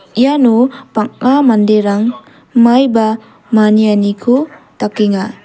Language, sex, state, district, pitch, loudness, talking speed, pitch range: Garo, female, Meghalaya, South Garo Hills, 230 Hz, -12 LUFS, 65 wpm, 210-255 Hz